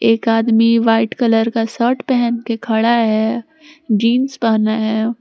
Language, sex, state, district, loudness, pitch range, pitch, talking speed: Hindi, female, Jharkhand, Palamu, -16 LUFS, 225-240 Hz, 230 Hz, 150 wpm